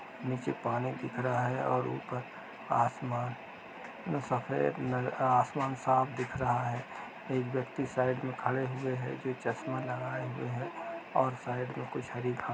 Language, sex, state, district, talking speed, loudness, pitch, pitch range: Hindi, male, Bihar, Gaya, 165 wpm, -34 LUFS, 125 Hz, 125-130 Hz